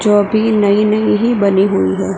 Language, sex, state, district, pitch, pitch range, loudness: Hindi, female, Gujarat, Gandhinagar, 205 Hz, 200-215 Hz, -13 LUFS